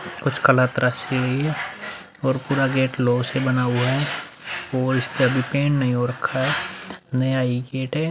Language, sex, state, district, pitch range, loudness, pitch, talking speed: Hindi, male, Uttar Pradesh, Muzaffarnagar, 125-135 Hz, -22 LUFS, 130 Hz, 185 wpm